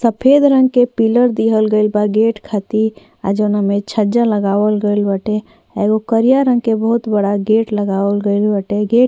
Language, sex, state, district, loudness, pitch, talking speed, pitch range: Bhojpuri, female, Uttar Pradesh, Ghazipur, -15 LUFS, 215 Hz, 190 wpm, 205-230 Hz